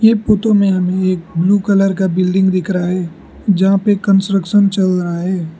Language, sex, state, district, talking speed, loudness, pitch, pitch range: Hindi, male, Arunachal Pradesh, Lower Dibang Valley, 195 wpm, -14 LUFS, 190 Hz, 185-200 Hz